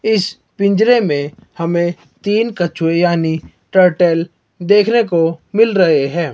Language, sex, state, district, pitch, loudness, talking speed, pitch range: Hindi, male, Himachal Pradesh, Shimla, 175 Hz, -15 LUFS, 125 wpm, 165-210 Hz